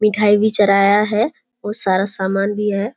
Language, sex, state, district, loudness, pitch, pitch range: Hindi, female, Bihar, Kishanganj, -15 LUFS, 205 Hz, 200-210 Hz